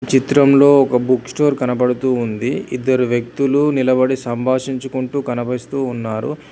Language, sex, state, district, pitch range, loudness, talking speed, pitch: Telugu, male, Telangana, Hyderabad, 125-140 Hz, -17 LUFS, 110 wpm, 130 Hz